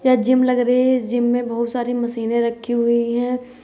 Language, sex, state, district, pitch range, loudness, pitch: Hindi, female, Uttar Pradesh, Hamirpur, 235-250 Hz, -19 LUFS, 245 Hz